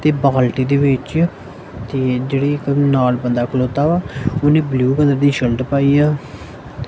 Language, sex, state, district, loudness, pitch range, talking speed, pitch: Punjabi, male, Punjab, Kapurthala, -16 LUFS, 125-145 Hz, 155 wpm, 140 Hz